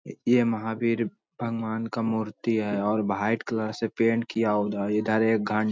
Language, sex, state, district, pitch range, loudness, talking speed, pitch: Hindi, male, Bihar, Jamui, 110-115 Hz, -26 LUFS, 180 wpm, 110 Hz